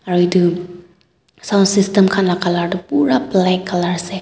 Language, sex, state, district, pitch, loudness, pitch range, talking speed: Nagamese, female, Nagaland, Dimapur, 180 Hz, -16 LUFS, 175-190 Hz, 170 wpm